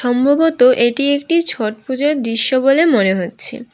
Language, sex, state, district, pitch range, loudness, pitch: Bengali, female, West Bengal, Alipurduar, 240-285 Hz, -15 LUFS, 255 Hz